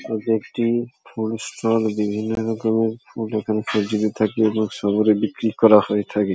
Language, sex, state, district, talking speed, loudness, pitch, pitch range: Bengali, male, West Bengal, Paschim Medinipur, 150 wpm, -21 LUFS, 110 Hz, 105-115 Hz